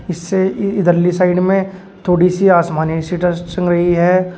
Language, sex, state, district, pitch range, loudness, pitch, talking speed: Hindi, male, Uttar Pradesh, Shamli, 175-190 Hz, -15 LUFS, 180 Hz, 190 wpm